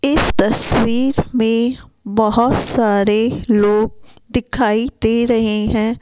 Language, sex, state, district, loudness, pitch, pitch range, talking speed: Hindi, female, Rajasthan, Jaipur, -14 LUFS, 225 Hz, 215-240 Hz, 100 wpm